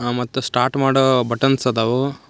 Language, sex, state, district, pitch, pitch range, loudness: Kannada, male, Karnataka, Koppal, 130 Hz, 120-135 Hz, -18 LUFS